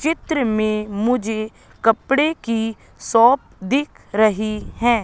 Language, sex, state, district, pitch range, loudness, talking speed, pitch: Hindi, female, Madhya Pradesh, Katni, 215-265 Hz, -19 LUFS, 105 wpm, 225 Hz